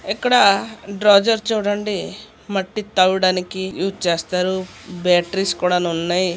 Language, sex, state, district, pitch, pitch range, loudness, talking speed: Telugu, female, Andhra Pradesh, Srikakulam, 190 Hz, 180-205 Hz, -18 LUFS, 105 wpm